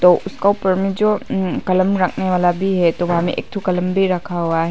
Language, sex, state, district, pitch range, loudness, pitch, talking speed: Hindi, female, Arunachal Pradesh, Papum Pare, 175-195 Hz, -18 LUFS, 185 Hz, 265 wpm